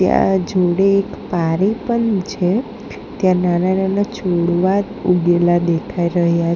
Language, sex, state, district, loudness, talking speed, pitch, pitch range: Gujarati, female, Gujarat, Gandhinagar, -17 LUFS, 120 wpm, 185 Hz, 175-195 Hz